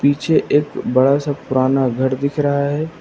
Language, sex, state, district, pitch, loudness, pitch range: Hindi, male, Uttar Pradesh, Lucknow, 140 Hz, -17 LUFS, 130-145 Hz